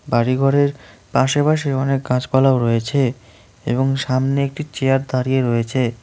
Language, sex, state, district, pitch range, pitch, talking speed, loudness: Bengali, male, West Bengal, Cooch Behar, 120-135 Hz, 130 Hz, 120 wpm, -18 LUFS